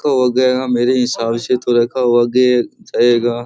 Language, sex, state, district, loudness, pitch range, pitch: Rajasthani, male, Rajasthan, Churu, -15 LUFS, 120-125 Hz, 120 Hz